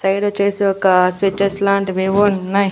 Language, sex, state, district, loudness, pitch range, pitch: Telugu, female, Andhra Pradesh, Annamaya, -16 LUFS, 190-200 Hz, 195 Hz